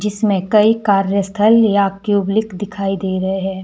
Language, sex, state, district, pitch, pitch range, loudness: Hindi, male, Himachal Pradesh, Shimla, 200 Hz, 195-210 Hz, -16 LUFS